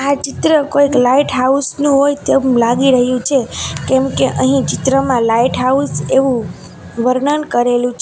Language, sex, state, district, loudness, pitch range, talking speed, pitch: Gujarati, female, Gujarat, Valsad, -14 LUFS, 235-275 Hz, 150 wpm, 255 Hz